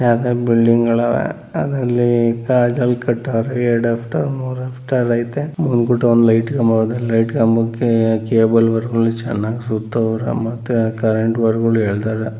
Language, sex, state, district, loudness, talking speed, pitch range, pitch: Kannada, male, Karnataka, Mysore, -17 LUFS, 100 wpm, 115-120 Hz, 115 Hz